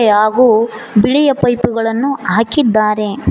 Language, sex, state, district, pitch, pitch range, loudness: Kannada, female, Karnataka, Koppal, 225 Hz, 215-250 Hz, -13 LUFS